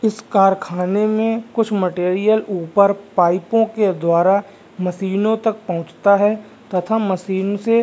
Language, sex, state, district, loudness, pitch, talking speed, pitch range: Hindi, male, Bihar, Vaishali, -18 LUFS, 200 Hz, 130 wpm, 185-220 Hz